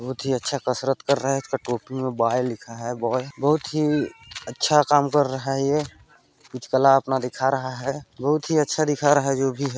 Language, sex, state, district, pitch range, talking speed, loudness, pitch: Hindi, male, Chhattisgarh, Balrampur, 130-145 Hz, 225 wpm, -23 LUFS, 135 Hz